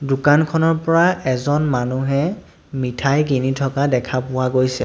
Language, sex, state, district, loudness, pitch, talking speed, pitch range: Assamese, male, Assam, Sonitpur, -18 LUFS, 135 Hz, 125 wpm, 130-150 Hz